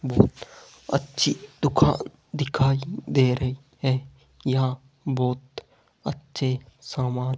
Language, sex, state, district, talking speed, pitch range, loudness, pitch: Hindi, male, Rajasthan, Jaipur, 95 wpm, 130-140 Hz, -25 LUFS, 135 Hz